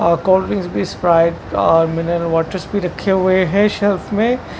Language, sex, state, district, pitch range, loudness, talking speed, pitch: Hindi, male, Maharashtra, Mumbai Suburban, 170-200 Hz, -16 LUFS, 130 wpm, 185 Hz